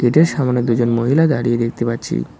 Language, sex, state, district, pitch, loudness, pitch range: Bengali, male, West Bengal, Cooch Behar, 120 Hz, -17 LUFS, 115-140 Hz